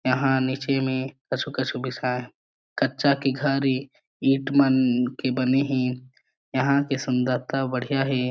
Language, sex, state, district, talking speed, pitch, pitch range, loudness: Chhattisgarhi, male, Chhattisgarh, Jashpur, 135 wpm, 130 Hz, 130-135 Hz, -24 LUFS